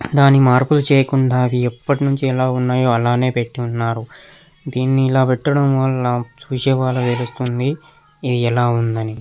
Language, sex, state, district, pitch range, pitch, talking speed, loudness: Telugu, male, Andhra Pradesh, Krishna, 120-140 Hz, 130 Hz, 130 wpm, -17 LUFS